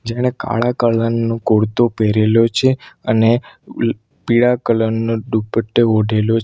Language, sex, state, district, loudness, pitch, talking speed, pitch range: Gujarati, male, Gujarat, Valsad, -16 LUFS, 115 Hz, 140 wpm, 110-120 Hz